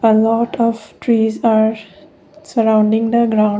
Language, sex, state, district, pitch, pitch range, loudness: English, female, Assam, Kamrup Metropolitan, 225 Hz, 220-235 Hz, -15 LUFS